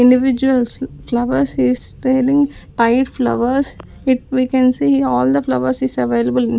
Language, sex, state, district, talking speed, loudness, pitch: English, female, Chandigarh, Chandigarh, 145 wpm, -16 LUFS, 240 Hz